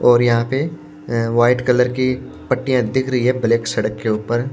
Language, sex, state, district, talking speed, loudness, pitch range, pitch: Hindi, male, Maharashtra, Washim, 200 wpm, -18 LUFS, 115-130 Hz, 125 Hz